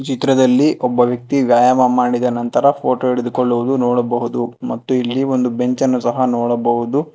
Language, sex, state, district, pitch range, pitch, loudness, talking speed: Kannada, male, Karnataka, Bangalore, 120-130 Hz, 125 Hz, -16 LUFS, 135 wpm